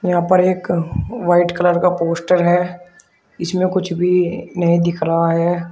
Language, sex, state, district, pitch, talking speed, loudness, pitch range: Hindi, male, Uttar Pradesh, Shamli, 175 Hz, 145 wpm, -17 LUFS, 170-180 Hz